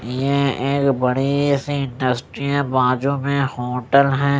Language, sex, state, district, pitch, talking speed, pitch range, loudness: Hindi, male, Odisha, Nuapada, 140 Hz, 135 wpm, 130-140 Hz, -19 LUFS